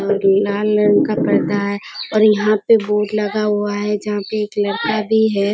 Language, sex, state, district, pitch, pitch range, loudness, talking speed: Hindi, female, Bihar, Kishanganj, 210 Hz, 205-215 Hz, -17 LUFS, 195 wpm